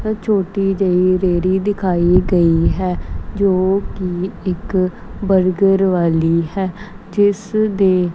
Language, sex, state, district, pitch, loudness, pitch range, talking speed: Punjabi, female, Punjab, Kapurthala, 190 Hz, -17 LUFS, 180-200 Hz, 120 wpm